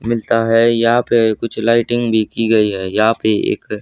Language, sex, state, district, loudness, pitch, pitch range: Hindi, male, Haryana, Rohtak, -15 LUFS, 115 Hz, 110-115 Hz